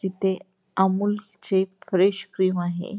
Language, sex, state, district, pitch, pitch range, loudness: Marathi, female, Maharashtra, Pune, 190 Hz, 185-195 Hz, -24 LUFS